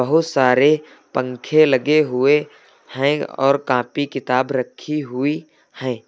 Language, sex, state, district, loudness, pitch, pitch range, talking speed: Hindi, male, Uttar Pradesh, Lucknow, -19 LUFS, 135 Hz, 125-150 Hz, 120 wpm